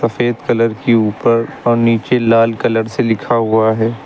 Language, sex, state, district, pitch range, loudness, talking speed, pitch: Hindi, male, Uttar Pradesh, Lucknow, 110-120 Hz, -14 LUFS, 175 wpm, 115 Hz